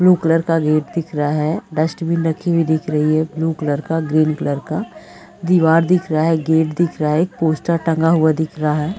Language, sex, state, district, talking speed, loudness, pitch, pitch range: Hindi, female, Uttar Pradesh, Muzaffarnagar, 225 wpm, -17 LUFS, 160 Hz, 155-165 Hz